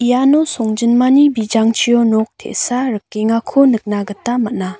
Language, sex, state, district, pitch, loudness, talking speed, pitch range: Garo, female, Meghalaya, West Garo Hills, 230 Hz, -14 LUFS, 110 wpm, 220-250 Hz